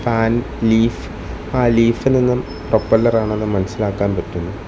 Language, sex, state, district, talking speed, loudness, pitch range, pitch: Malayalam, male, Kerala, Thiruvananthapuram, 115 wpm, -17 LUFS, 95-115 Hz, 110 Hz